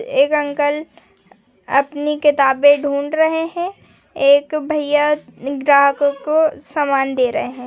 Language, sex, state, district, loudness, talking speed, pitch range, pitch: Hindi, female, Bihar, Gopalganj, -17 LUFS, 115 wpm, 280-305 Hz, 290 Hz